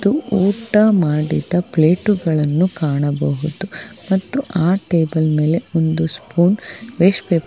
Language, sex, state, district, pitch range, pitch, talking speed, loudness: Kannada, female, Karnataka, Bangalore, 155-195 Hz, 175 Hz, 95 wpm, -17 LUFS